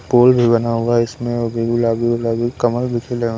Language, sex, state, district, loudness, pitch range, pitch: Hindi, male, Maharashtra, Washim, -17 LUFS, 115-120 Hz, 120 Hz